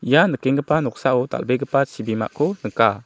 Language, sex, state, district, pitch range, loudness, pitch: Garo, male, Meghalaya, South Garo Hills, 110-140 Hz, -20 LUFS, 130 Hz